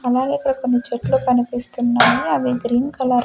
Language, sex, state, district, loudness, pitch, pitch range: Telugu, female, Andhra Pradesh, Sri Satya Sai, -18 LUFS, 250 Hz, 245-260 Hz